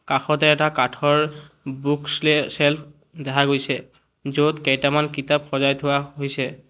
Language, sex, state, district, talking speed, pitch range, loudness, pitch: Assamese, male, Assam, Kamrup Metropolitan, 125 wpm, 140-150 Hz, -21 LUFS, 145 Hz